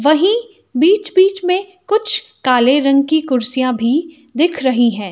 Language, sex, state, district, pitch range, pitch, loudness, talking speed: Hindi, female, Himachal Pradesh, Shimla, 260-380 Hz, 310 Hz, -15 LUFS, 150 wpm